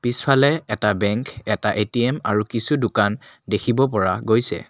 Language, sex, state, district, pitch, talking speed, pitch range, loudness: Assamese, male, Assam, Kamrup Metropolitan, 115 Hz, 140 wpm, 105-125 Hz, -20 LUFS